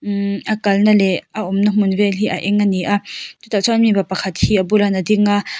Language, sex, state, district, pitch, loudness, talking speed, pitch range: Mizo, female, Mizoram, Aizawl, 205 Hz, -16 LUFS, 255 wpm, 195-210 Hz